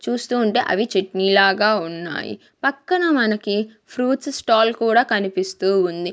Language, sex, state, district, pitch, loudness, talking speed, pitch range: Telugu, female, Andhra Pradesh, Sri Satya Sai, 215 Hz, -19 LUFS, 125 wpm, 195-245 Hz